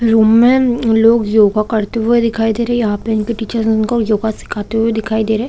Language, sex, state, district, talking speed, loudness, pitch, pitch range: Hindi, female, Chhattisgarh, Korba, 230 wpm, -14 LUFS, 225 Hz, 220-230 Hz